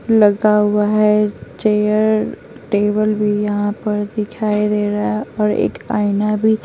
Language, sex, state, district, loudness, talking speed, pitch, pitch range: Hindi, female, Bihar, Patna, -17 LUFS, 155 wpm, 210 Hz, 210-215 Hz